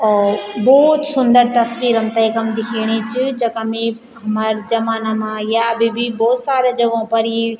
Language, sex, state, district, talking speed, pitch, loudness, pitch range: Garhwali, female, Uttarakhand, Tehri Garhwal, 165 wpm, 230 Hz, -16 LUFS, 220-240 Hz